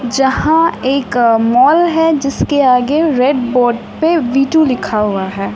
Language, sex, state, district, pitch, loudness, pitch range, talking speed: Hindi, female, Bihar, West Champaran, 265 Hz, -13 LUFS, 240-310 Hz, 150 wpm